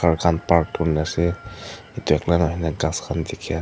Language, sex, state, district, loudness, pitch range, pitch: Nagamese, female, Nagaland, Dimapur, -22 LUFS, 80-90 Hz, 85 Hz